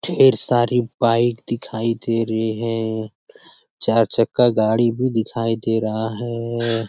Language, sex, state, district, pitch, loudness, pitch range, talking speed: Hindi, male, Bihar, Jamui, 115 Hz, -19 LUFS, 110-120 Hz, 130 wpm